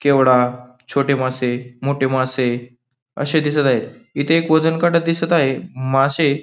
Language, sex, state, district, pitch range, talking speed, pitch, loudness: Marathi, male, Maharashtra, Pune, 125-150 Hz, 150 wpm, 135 Hz, -18 LUFS